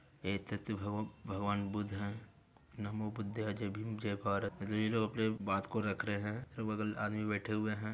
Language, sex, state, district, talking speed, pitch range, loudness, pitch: Hindi, male, Bihar, Gaya, 210 wpm, 100-110 Hz, -38 LUFS, 105 Hz